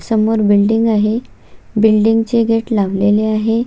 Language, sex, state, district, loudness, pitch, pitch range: Marathi, female, Maharashtra, Solapur, -14 LUFS, 220 Hz, 210-225 Hz